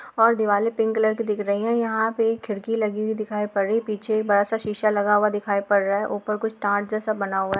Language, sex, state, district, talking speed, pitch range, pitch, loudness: Hindi, female, Bihar, Jahanabad, 275 wpm, 205-220 Hz, 215 Hz, -23 LUFS